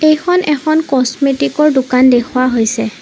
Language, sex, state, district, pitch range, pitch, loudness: Assamese, female, Assam, Sonitpur, 255-300 Hz, 275 Hz, -12 LUFS